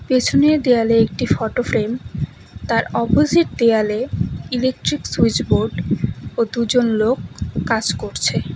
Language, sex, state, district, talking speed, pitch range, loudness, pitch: Bengali, female, West Bengal, Cooch Behar, 110 wpm, 225-255 Hz, -18 LUFS, 240 Hz